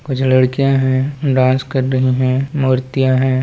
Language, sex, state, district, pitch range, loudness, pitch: Hindi, male, Chhattisgarh, Balrampur, 130-135 Hz, -15 LUFS, 130 Hz